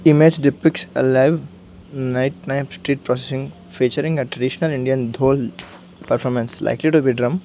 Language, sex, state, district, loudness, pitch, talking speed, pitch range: English, male, Arunachal Pradesh, Lower Dibang Valley, -19 LUFS, 135 Hz, 135 wpm, 130-155 Hz